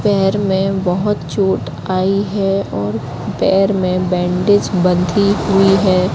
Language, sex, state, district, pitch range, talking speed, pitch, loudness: Hindi, female, Madhya Pradesh, Katni, 180-200 Hz, 125 wpm, 190 Hz, -15 LUFS